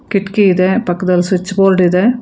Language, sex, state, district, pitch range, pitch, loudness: Kannada, female, Karnataka, Bangalore, 180-200 Hz, 190 Hz, -13 LUFS